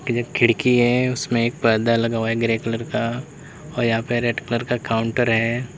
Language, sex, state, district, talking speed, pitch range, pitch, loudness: Hindi, male, Uttar Pradesh, Lalitpur, 205 wpm, 115-125 Hz, 120 Hz, -20 LUFS